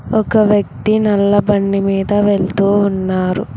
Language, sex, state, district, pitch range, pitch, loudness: Telugu, female, Telangana, Hyderabad, 195-205 Hz, 200 Hz, -14 LUFS